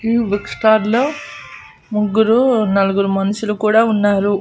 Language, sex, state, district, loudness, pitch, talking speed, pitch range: Telugu, female, Andhra Pradesh, Annamaya, -15 LUFS, 215 Hz, 95 wpm, 205-225 Hz